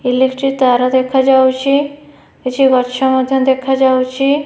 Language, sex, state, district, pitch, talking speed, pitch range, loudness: Odia, female, Odisha, Khordha, 265 Hz, 95 wpm, 260-270 Hz, -13 LUFS